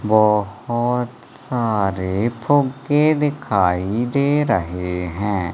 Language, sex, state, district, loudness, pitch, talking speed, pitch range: Hindi, male, Madhya Pradesh, Umaria, -20 LUFS, 115 Hz, 75 wpm, 95-135 Hz